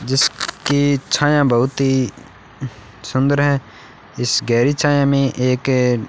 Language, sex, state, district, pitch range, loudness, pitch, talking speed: Hindi, male, Rajasthan, Bikaner, 125-140 Hz, -17 LUFS, 130 Hz, 120 wpm